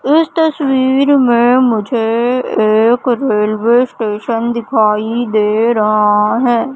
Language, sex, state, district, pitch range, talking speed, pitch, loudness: Hindi, female, Madhya Pradesh, Katni, 215-255 Hz, 100 wpm, 235 Hz, -13 LUFS